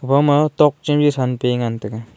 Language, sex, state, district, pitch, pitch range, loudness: Wancho, male, Arunachal Pradesh, Longding, 135 Hz, 120-145 Hz, -17 LUFS